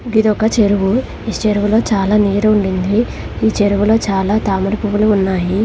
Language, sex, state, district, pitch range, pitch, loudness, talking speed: Telugu, female, Telangana, Hyderabad, 200-220 Hz, 210 Hz, -15 LUFS, 140 wpm